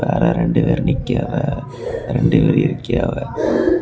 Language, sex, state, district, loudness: Tamil, male, Tamil Nadu, Kanyakumari, -18 LUFS